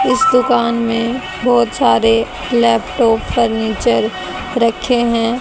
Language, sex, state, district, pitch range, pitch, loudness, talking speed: Hindi, male, Haryana, Charkhi Dadri, 225-245 Hz, 235 Hz, -15 LUFS, 100 wpm